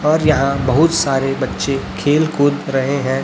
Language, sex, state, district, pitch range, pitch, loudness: Hindi, male, Chhattisgarh, Raipur, 135-155 Hz, 140 Hz, -16 LUFS